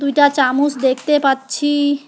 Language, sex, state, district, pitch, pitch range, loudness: Bengali, female, West Bengal, Alipurduar, 285 Hz, 270-290 Hz, -16 LUFS